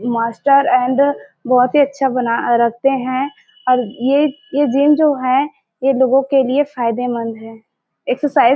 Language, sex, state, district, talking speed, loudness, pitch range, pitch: Hindi, female, Chhattisgarh, Bilaspur, 170 wpm, -16 LUFS, 245-285 Hz, 265 Hz